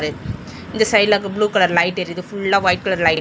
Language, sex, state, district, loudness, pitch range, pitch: Tamil, male, Tamil Nadu, Chennai, -17 LUFS, 170-205 Hz, 185 Hz